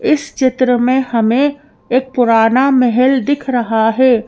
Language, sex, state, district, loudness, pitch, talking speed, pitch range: Hindi, female, Madhya Pradesh, Bhopal, -13 LUFS, 255 Hz, 140 wpm, 240-265 Hz